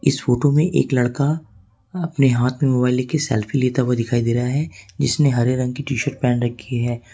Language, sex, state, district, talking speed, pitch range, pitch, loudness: Hindi, male, Jharkhand, Ranchi, 220 wpm, 120-140 Hz, 125 Hz, -20 LUFS